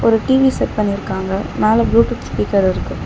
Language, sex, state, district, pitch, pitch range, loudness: Tamil, female, Tamil Nadu, Chennai, 215 Hz, 195-230 Hz, -16 LUFS